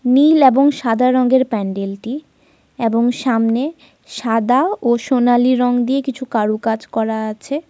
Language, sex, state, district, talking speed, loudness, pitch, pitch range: Bengali, female, Jharkhand, Sahebganj, 135 wpm, -16 LUFS, 245 Hz, 225-265 Hz